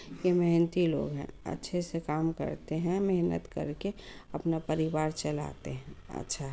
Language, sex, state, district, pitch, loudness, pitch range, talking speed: Hindi, female, Bihar, Muzaffarpur, 160 Hz, -32 LUFS, 145-175 Hz, 155 wpm